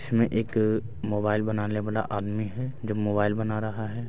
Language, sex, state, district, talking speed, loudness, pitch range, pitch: Hindi, male, Bihar, Bhagalpur, 175 wpm, -28 LUFS, 105-110 Hz, 110 Hz